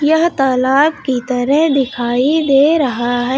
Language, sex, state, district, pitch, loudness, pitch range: Hindi, female, Uttar Pradesh, Lucknow, 270 Hz, -14 LUFS, 250-300 Hz